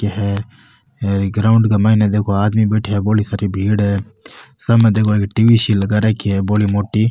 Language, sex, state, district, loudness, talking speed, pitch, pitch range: Marwari, male, Rajasthan, Nagaur, -15 LUFS, 195 wpm, 105 Hz, 100-110 Hz